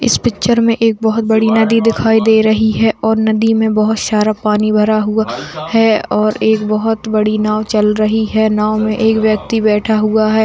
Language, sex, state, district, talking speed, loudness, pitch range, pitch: Hindi, female, Bihar, Madhepura, 200 wpm, -13 LUFS, 215-220 Hz, 220 Hz